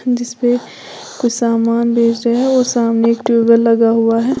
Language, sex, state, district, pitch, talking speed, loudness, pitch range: Hindi, female, Uttar Pradesh, Lalitpur, 235 Hz, 190 wpm, -14 LUFS, 230-245 Hz